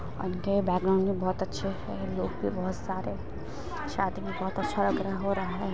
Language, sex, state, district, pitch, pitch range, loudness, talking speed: Hindi, female, Bihar, Muzaffarpur, 190 Hz, 185-195 Hz, -31 LUFS, 200 wpm